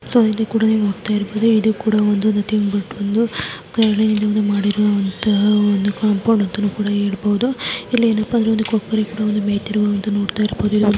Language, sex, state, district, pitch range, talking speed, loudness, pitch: Kannada, female, Karnataka, Chamarajanagar, 205-220 Hz, 155 wpm, -18 LUFS, 210 Hz